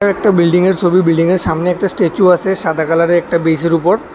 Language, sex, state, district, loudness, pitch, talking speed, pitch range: Bengali, male, Tripura, West Tripura, -13 LUFS, 175 Hz, 190 wpm, 170-190 Hz